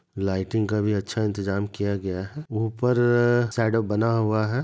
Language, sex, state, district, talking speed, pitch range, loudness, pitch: Hindi, male, Bihar, Madhepura, 170 wpm, 100-115 Hz, -24 LUFS, 110 Hz